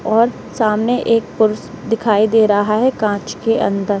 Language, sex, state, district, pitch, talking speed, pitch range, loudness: Hindi, female, Uttar Pradesh, Lalitpur, 220 Hz, 165 wpm, 210-230 Hz, -16 LUFS